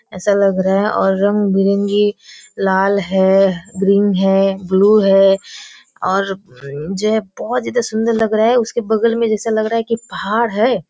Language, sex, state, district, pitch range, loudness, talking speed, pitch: Hindi, female, Bihar, Kishanganj, 195-220 Hz, -15 LUFS, 165 wpm, 200 Hz